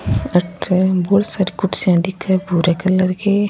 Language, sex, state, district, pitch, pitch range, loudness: Rajasthani, female, Rajasthan, Churu, 185 Hz, 175-190 Hz, -17 LUFS